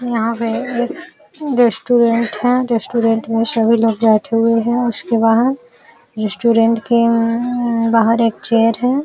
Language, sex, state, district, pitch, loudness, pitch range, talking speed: Hindi, female, Uttar Pradesh, Jalaun, 230 Hz, -15 LUFS, 225-245 Hz, 145 wpm